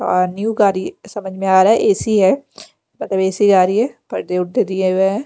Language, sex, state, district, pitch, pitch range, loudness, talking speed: Hindi, female, Bihar, Patna, 195 Hz, 190-220 Hz, -16 LUFS, 215 wpm